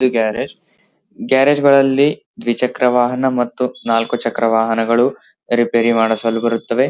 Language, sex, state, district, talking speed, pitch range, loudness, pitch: Kannada, male, Karnataka, Belgaum, 120 wpm, 115-130 Hz, -16 LUFS, 120 Hz